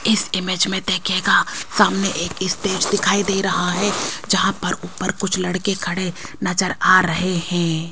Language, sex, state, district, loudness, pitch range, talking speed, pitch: Hindi, female, Rajasthan, Jaipur, -19 LUFS, 180-195 Hz, 160 wpm, 185 Hz